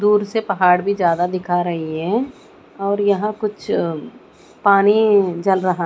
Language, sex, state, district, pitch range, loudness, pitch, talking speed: Hindi, female, Maharashtra, Mumbai Suburban, 180-210 Hz, -18 LUFS, 200 Hz, 145 wpm